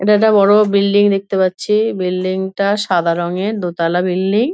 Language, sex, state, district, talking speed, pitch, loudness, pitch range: Bengali, female, West Bengal, Dakshin Dinajpur, 170 wpm, 195 Hz, -15 LUFS, 180-210 Hz